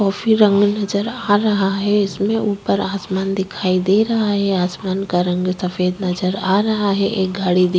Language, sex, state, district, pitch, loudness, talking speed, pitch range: Hindi, female, Uttar Pradesh, Jyotiba Phule Nagar, 195 Hz, -18 LUFS, 190 wpm, 185-205 Hz